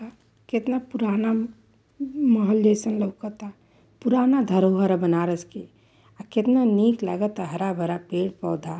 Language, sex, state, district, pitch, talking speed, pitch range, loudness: Bhojpuri, female, Uttar Pradesh, Varanasi, 210 Hz, 110 wpm, 180-230 Hz, -23 LUFS